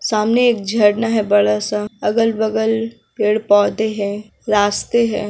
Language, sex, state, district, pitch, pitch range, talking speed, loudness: Hindi, female, Bihar, Kishanganj, 215 Hz, 205-225 Hz, 125 wpm, -17 LUFS